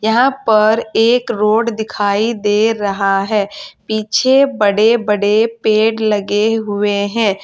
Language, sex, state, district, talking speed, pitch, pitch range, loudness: Hindi, female, Uttar Pradesh, Saharanpur, 120 wpm, 215 Hz, 205-225 Hz, -14 LUFS